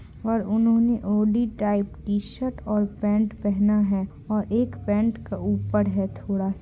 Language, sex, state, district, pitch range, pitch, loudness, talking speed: Hindi, female, Bihar, Purnia, 200-225 Hz, 210 Hz, -24 LUFS, 145 wpm